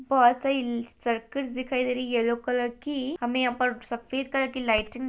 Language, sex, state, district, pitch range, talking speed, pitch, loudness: Hindi, female, Chhattisgarh, Rajnandgaon, 240-265 Hz, 210 wpm, 250 Hz, -27 LUFS